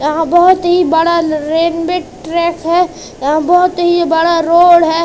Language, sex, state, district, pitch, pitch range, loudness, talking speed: Hindi, female, Madhya Pradesh, Katni, 335 Hz, 325-350 Hz, -12 LUFS, 145 wpm